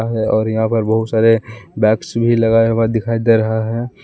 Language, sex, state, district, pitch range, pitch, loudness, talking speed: Hindi, male, Jharkhand, Palamu, 110-115 Hz, 115 Hz, -15 LUFS, 195 wpm